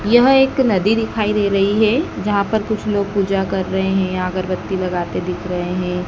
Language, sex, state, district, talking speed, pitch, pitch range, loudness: Hindi, male, Madhya Pradesh, Dhar, 210 wpm, 195 Hz, 185-215 Hz, -18 LUFS